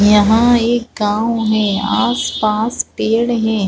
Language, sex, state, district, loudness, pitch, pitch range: Hindi, female, Chhattisgarh, Balrampur, -15 LUFS, 220 Hz, 210-235 Hz